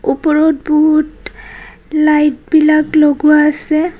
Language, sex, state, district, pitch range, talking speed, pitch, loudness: Assamese, female, Assam, Kamrup Metropolitan, 300-315 Hz, 90 wpm, 305 Hz, -12 LUFS